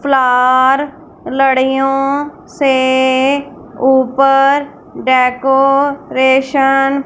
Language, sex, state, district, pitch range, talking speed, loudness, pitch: Hindi, female, Punjab, Fazilka, 260-280 Hz, 50 wpm, -12 LUFS, 270 Hz